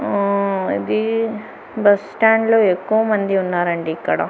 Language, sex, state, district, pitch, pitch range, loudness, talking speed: Telugu, female, Andhra Pradesh, Annamaya, 200 Hz, 175-220 Hz, -18 LUFS, 100 wpm